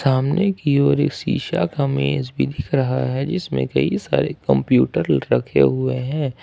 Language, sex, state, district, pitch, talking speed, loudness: Hindi, male, Jharkhand, Ranchi, 130 Hz, 170 wpm, -20 LUFS